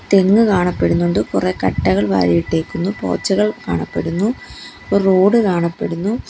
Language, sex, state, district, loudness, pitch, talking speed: Malayalam, female, Kerala, Kollam, -16 LUFS, 180 Hz, 105 wpm